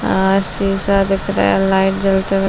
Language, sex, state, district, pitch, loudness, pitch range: Hindi, female, Chhattisgarh, Balrampur, 195 Hz, -15 LUFS, 190-195 Hz